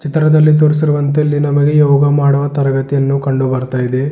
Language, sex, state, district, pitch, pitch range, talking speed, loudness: Kannada, male, Karnataka, Bidar, 145 Hz, 135-150 Hz, 145 wpm, -12 LUFS